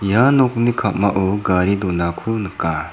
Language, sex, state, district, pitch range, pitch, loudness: Garo, male, Meghalaya, South Garo Hills, 90-115 Hz, 100 Hz, -18 LUFS